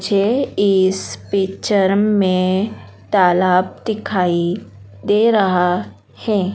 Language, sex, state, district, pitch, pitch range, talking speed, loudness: Hindi, female, Madhya Pradesh, Dhar, 190 Hz, 180-200 Hz, 80 wpm, -17 LUFS